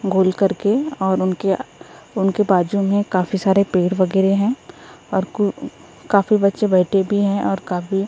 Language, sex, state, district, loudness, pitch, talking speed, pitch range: Hindi, female, Maharashtra, Gondia, -18 LUFS, 195 Hz, 155 wpm, 190-200 Hz